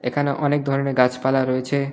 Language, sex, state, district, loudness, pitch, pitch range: Bengali, male, West Bengal, Alipurduar, -21 LUFS, 135 Hz, 130-140 Hz